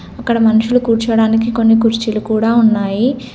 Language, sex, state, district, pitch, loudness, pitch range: Telugu, female, Telangana, Komaram Bheem, 225 Hz, -13 LUFS, 220-235 Hz